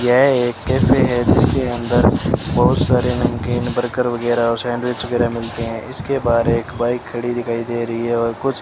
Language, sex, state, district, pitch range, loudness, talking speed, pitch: Hindi, male, Rajasthan, Bikaner, 115-125 Hz, -18 LUFS, 190 wpm, 120 Hz